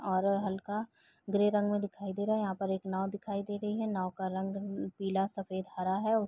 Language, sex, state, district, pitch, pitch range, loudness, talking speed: Hindi, female, Bihar, East Champaran, 200 Hz, 190-205 Hz, -34 LUFS, 230 wpm